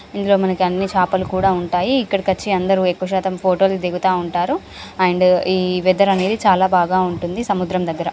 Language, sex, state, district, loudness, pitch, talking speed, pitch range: Telugu, female, Andhra Pradesh, Srikakulam, -17 LUFS, 185 Hz, 185 wpm, 180-195 Hz